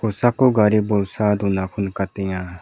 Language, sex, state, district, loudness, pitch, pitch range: Garo, male, Meghalaya, South Garo Hills, -20 LUFS, 100 Hz, 95-110 Hz